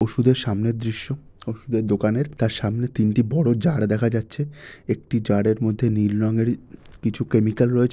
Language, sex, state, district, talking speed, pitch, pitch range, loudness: Bengali, male, West Bengal, North 24 Parganas, 150 wpm, 115 Hz, 110-125 Hz, -22 LUFS